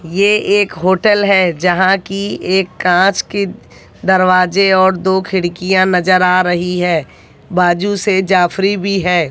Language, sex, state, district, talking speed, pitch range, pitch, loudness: Hindi, female, Haryana, Jhajjar, 140 wpm, 180-195 Hz, 185 Hz, -13 LUFS